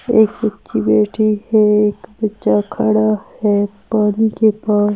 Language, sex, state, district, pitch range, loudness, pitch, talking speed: Hindi, female, Delhi, New Delhi, 180-215 Hz, -16 LUFS, 210 Hz, 135 wpm